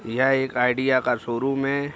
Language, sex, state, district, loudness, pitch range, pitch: Hindi, male, Bihar, Araria, -22 LUFS, 125-135 Hz, 130 Hz